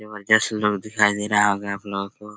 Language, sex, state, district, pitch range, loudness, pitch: Hindi, male, Bihar, Araria, 100-105 Hz, -21 LUFS, 105 Hz